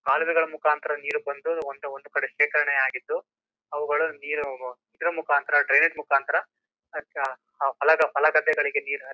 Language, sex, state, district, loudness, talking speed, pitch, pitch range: Kannada, male, Karnataka, Chamarajanagar, -24 LUFS, 110 wpm, 150 Hz, 140-160 Hz